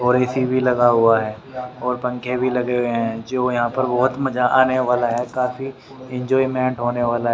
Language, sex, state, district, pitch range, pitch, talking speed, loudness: Hindi, male, Haryana, Rohtak, 120-130 Hz, 125 Hz, 205 wpm, -19 LUFS